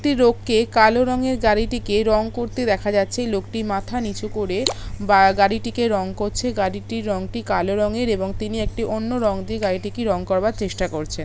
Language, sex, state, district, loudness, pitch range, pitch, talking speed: Bengali, female, West Bengal, Kolkata, -21 LUFS, 195-235 Hz, 215 Hz, 170 wpm